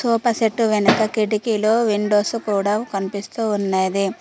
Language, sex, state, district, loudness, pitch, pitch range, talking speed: Telugu, female, Telangana, Mahabubabad, -19 LUFS, 215 Hz, 200-225 Hz, 115 wpm